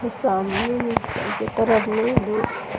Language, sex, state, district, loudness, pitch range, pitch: Hindi, female, Bihar, Sitamarhi, -22 LUFS, 215-240 Hz, 225 Hz